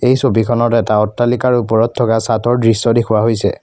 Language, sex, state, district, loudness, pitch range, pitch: Assamese, male, Assam, Kamrup Metropolitan, -14 LUFS, 110-120 Hz, 115 Hz